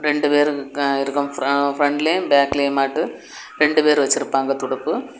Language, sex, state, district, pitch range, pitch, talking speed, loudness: Tamil, female, Tamil Nadu, Kanyakumari, 140-145 Hz, 140 Hz, 150 wpm, -19 LUFS